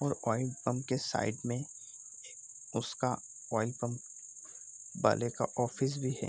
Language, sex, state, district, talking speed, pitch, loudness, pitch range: Hindi, male, Bihar, Sitamarhi, 135 wpm, 125 Hz, -36 LUFS, 115-130 Hz